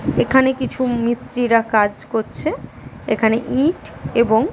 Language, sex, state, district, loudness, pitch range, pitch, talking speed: Bengali, female, West Bengal, Kolkata, -18 LUFS, 220-260 Hz, 235 Hz, 105 wpm